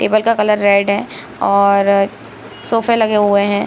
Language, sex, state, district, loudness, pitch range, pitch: Hindi, female, Bihar, Saran, -14 LUFS, 200-215 Hz, 205 Hz